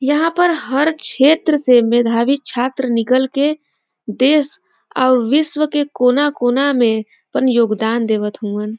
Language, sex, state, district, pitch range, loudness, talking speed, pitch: Bhojpuri, female, Uttar Pradesh, Varanasi, 235-295 Hz, -15 LUFS, 130 wpm, 260 Hz